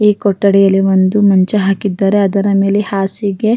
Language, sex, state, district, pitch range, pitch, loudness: Kannada, female, Karnataka, Raichur, 195-205 Hz, 200 Hz, -12 LUFS